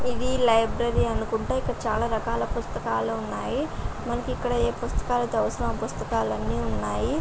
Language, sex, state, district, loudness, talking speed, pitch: Telugu, female, Andhra Pradesh, Visakhapatnam, -27 LUFS, 140 wpm, 225 Hz